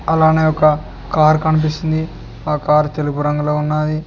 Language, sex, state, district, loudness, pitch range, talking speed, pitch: Telugu, male, Telangana, Mahabubabad, -16 LUFS, 150-155 Hz, 130 wpm, 155 Hz